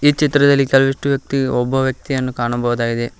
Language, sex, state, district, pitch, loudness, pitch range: Kannada, male, Karnataka, Koppal, 135 Hz, -17 LUFS, 120-140 Hz